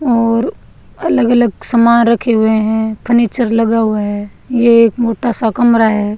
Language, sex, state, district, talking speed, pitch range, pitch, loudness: Hindi, female, Rajasthan, Bikaner, 165 wpm, 220-235 Hz, 230 Hz, -13 LUFS